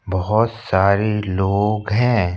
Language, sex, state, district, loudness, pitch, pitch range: Hindi, male, Madhya Pradesh, Bhopal, -18 LUFS, 105 Hz, 95-110 Hz